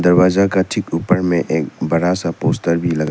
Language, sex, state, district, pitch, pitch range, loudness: Hindi, male, Arunachal Pradesh, Papum Pare, 90 Hz, 85-90 Hz, -17 LUFS